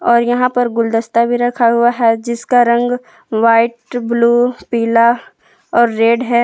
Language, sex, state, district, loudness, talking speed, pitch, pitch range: Hindi, female, Jharkhand, Palamu, -14 LUFS, 150 wpm, 235 Hz, 230-245 Hz